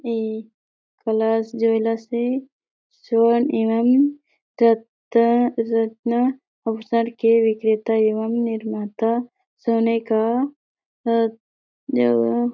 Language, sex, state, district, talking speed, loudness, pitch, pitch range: Surgujia, female, Chhattisgarh, Sarguja, 90 wpm, -21 LUFS, 230 Hz, 220-235 Hz